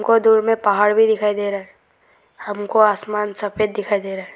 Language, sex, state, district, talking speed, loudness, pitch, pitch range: Hindi, male, Arunachal Pradesh, Lower Dibang Valley, 205 wpm, -18 LUFS, 210 Hz, 205-220 Hz